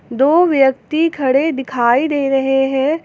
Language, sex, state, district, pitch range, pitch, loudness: Hindi, female, Jharkhand, Garhwa, 265-305 Hz, 270 Hz, -15 LUFS